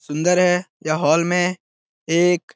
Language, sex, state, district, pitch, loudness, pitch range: Hindi, male, Bihar, Araria, 175 Hz, -19 LUFS, 160-180 Hz